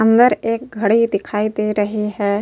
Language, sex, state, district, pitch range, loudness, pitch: Hindi, female, Uttar Pradesh, Jyotiba Phule Nagar, 210-225 Hz, -17 LUFS, 215 Hz